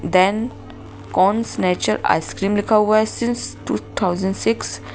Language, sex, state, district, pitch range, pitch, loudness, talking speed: Hindi, male, Madhya Pradesh, Bhopal, 180-215 Hz, 195 Hz, -19 LUFS, 145 wpm